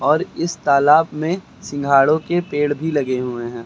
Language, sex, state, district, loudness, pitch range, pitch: Hindi, male, Uttar Pradesh, Lucknow, -18 LUFS, 140-160 Hz, 145 Hz